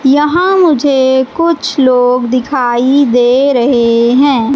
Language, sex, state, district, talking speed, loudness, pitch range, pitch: Hindi, female, Madhya Pradesh, Katni, 105 wpm, -10 LUFS, 245-285 Hz, 260 Hz